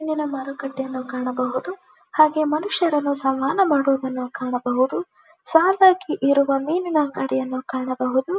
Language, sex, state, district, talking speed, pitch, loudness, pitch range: Kannada, female, Karnataka, Dharwad, 115 wpm, 275 Hz, -21 LUFS, 255-315 Hz